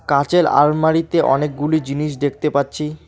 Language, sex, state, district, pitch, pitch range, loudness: Bengali, male, West Bengal, Alipurduar, 150 Hz, 145-160 Hz, -17 LUFS